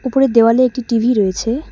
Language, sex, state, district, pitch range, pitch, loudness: Bengali, female, West Bengal, Cooch Behar, 230-255 Hz, 245 Hz, -14 LUFS